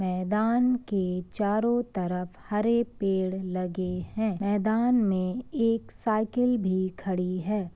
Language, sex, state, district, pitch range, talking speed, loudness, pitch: Hindi, female, Uttar Pradesh, Ghazipur, 185-230 Hz, 115 wpm, -27 LUFS, 205 Hz